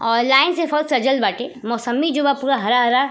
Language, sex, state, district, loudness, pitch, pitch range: Bhojpuri, female, Uttar Pradesh, Ghazipur, -18 LUFS, 265 Hz, 240-285 Hz